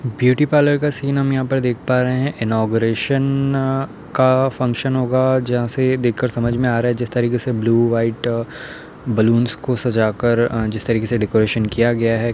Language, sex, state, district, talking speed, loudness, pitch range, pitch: Hindi, male, Uttar Pradesh, Hamirpur, 190 wpm, -18 LUFS, 115-130 Hz, 120 Hz